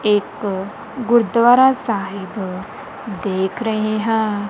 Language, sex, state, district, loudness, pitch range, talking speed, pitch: Punjabi, female, Punjab, Kapurthala, -18 LUFS, 195-235 Hz, 80 wpm, 215 Hz